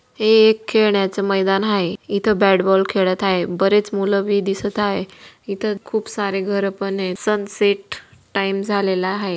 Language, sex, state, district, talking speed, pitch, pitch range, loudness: Marathi, female, Maharashtra, Dhule, 160 wpm, 200 Hz, 195-205 Hz, -19 LUFS